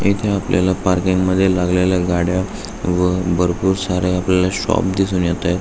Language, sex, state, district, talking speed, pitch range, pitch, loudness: Marathi, male, Maharashtra, Aurangabad, 140 wpm, 90-95 Hz, 90 Hz, -17 LUFS